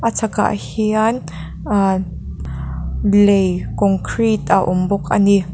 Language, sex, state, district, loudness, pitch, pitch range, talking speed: Mizo, female, Mizoram, Aizawl, -17 LUFS, 200 Hz, 180-215 Hz, 110 wpm